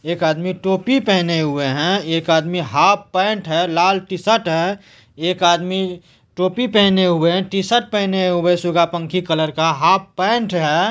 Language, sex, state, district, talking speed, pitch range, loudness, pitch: Hindi, male, Bihar, Supaul, 165 wpm, 165-190 Hz, -17 LUFS, 180 Hz